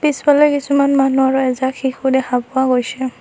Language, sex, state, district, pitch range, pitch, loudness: Assamese, female, Assam, Kamrup Metropolitan, 260-280 Hz, 265 Hz, -15 LUFS